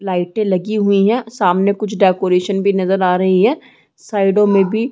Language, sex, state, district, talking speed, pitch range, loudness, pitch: Hindi, female, Chhattisgarh, Rajnandgaon, 195 wpm, 185-210 Hz, -15 LUFS, 200 Hz